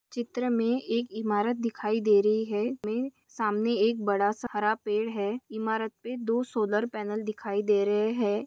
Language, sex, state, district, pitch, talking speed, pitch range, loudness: Hindi, female, Maharashtra, Pune, 220 Hz, 170 wpm, 210-235 Hz, -28 LUFS